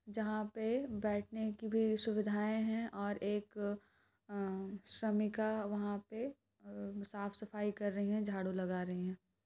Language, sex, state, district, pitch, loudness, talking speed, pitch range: Hindi, female, Bihar, Gaya, 210 Hz, -39 LUFS, 140 wpm, 200-220 Hz